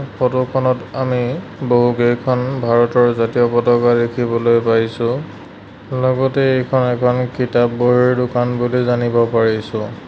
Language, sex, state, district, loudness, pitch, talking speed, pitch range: Assamese, male, Assam, Sonitpur, -16 LUFS, 120 Hz, 100 wpm, 120-125 Hz